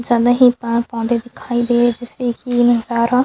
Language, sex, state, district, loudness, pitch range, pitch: Hindi, female, Chhattisgarh, Sukma, -16 LUFS, 235-245 Hz, 240 Hz